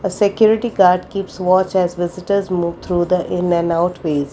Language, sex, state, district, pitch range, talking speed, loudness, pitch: English, female, Karnataka, Bangalore, 175-195 Hz, 195 wpm, -17 LUFS, 180 Hz